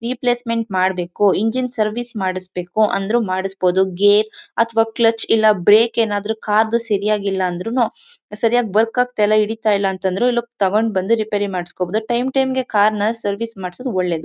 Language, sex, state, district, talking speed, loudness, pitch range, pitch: Kannada, female, Karnataka, Mysore, 150 wpm, -18 LUFS, 195-230 Hz, 215 Hz